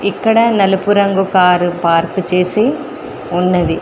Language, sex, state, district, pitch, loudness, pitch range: Telugu, female, Telangana, Mahabubabad, 190 Hz, -13 LUFS, 180-205 Hz